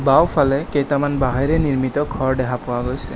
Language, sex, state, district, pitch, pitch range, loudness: Assamese, male, Assam, Kamrup Metropolitan, 135 Hz, 130-145 Hz, -19 LUFS